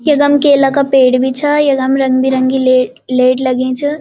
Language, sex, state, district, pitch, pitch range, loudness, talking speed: Garhwali, female, Uttarakhand, Uttarkashi, 265 Hz, 255-285 Hz, -12 LUFS, 180 wpm